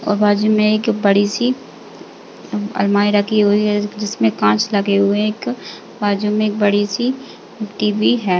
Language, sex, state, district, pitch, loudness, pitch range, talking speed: Hindi, female, Uttar Pradesh, Jalaun, 210 Hz, -17 LUFS, 205-215 Hz, 165 wpm